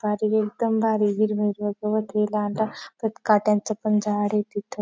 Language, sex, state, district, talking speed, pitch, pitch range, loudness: Marathi, female, Maharashtra, Dhule, 175 wpm, 210 Hz, 210-215 Hz, -24 LUFS